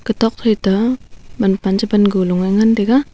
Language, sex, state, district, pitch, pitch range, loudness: Wancho, female, Arunachal Pradesh, Longding, 210 Hz, 195-225 Hz, -15 LUFS